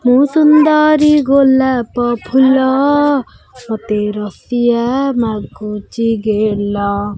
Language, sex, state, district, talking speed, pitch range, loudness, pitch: Odia, female, Odisha, Khordha, 65 wpm, 215-275 Hz, -13 LUFS, 245 Hz